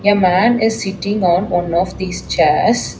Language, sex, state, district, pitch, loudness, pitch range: English, female, Telangana, Hyderabad, 190 Hz, -15 LUFS, 180-205 Hz